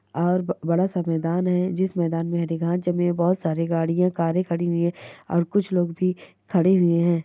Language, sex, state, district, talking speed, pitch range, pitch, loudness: Hindi, male, Chhattisgarh, Bastar, 205 wpm, 170-180 Hz, 175 Hz, -23 LUFS